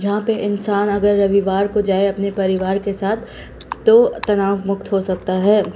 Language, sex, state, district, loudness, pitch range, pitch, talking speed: Hindi, female, Bihar, Patna, -17 LUFS, 195-205 Hz, 200 Hz, 175 wpm